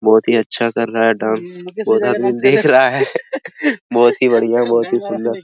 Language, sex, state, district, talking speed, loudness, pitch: Hindi, male, Bihar, Araria, 200 wpm, -15 LUFS, 120 Hz